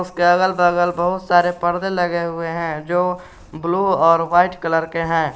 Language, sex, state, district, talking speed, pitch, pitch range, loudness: Hindi, male, Jharkhand, Garhwa, 180 wpm, 175 Hz, 165-180 Hz, -18 LUFS